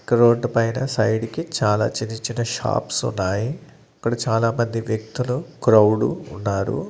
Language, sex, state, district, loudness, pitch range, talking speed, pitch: Telugu, male, Andhra Pradesh, Annamaya, -21 LUFS, 110-125 Hz, 115 wpm, 115 Hz